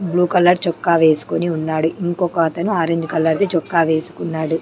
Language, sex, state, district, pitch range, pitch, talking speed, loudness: Telugu, female, Andhra Pradesh, Sri Satya Sai, 160-175 Hz, 170 Hz, 140 wpm, -17 LUFS